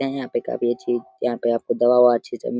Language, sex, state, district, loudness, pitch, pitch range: Hindi, male, Uttar Pradesh, Deoria, -21 LUFS, 120 Hz, 120-125 Hz